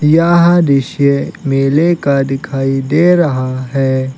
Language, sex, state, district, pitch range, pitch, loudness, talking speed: Hindi, male, Uttar Pradesh, Lucknow, 135-165 Hz, 140 Hz, -12 LUFS, 115 wpm